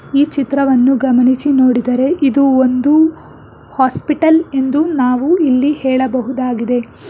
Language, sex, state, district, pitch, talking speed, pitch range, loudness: Kannada, female, Karnataka, Bangalore, 265 Hz, 95 wpm, 255-285 Hz, -13 LUFS